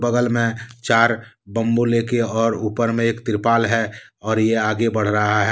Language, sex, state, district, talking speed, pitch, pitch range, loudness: Hindi, male, Jharkhand, Deoghar, 185 wpm, 115 Hz, 110-115 Hz, -19 LUFS